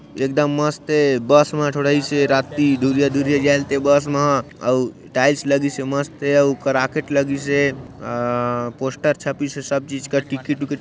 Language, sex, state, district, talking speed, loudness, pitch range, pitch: Chhattisgarhi, male, Chhattisgarh, Sarguja, 165 wpm, -19 LUFS, 135-145 Hz, 140 Hz